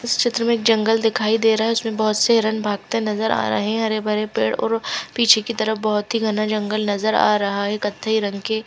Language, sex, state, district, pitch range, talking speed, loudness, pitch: Hindi, female, Chhattisgarh, Raipur, 210-225 Hz, 240 wpm, -19 LUFS, 220 Hz